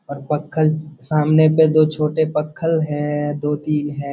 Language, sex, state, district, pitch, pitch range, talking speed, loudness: Hindi, male, Jharkhand, Jamtara, 150 Hz, 150-155 Hz, 145 wpm, -18 LUFS